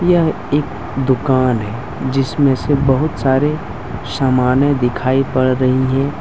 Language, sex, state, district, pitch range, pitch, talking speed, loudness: Hindi, male, Jharkhand, Deoghar, 125-140 Hz, 130 Hz, 135 wpm, -16 LUFS